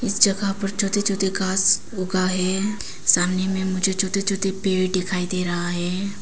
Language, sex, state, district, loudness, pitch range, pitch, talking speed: Hindi, female, Arunachal Pradesh, Papum Pare, -21 LUFS, 185-195 Hz, 190 Hz, 165 wpm